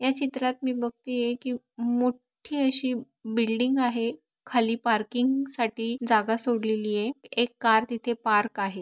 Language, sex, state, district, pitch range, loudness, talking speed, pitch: Marathi, female, Maharashtra, Aurangabad, 225-250 Hz, -27 LUFS, 145 wpm, 240 Hz